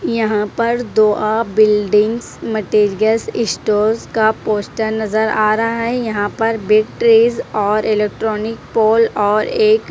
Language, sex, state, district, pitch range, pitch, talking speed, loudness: Hindi, female, Punjab, Kapurthala, 215-230 Hz, 220 Hz, 140 wpm, -15 LUFS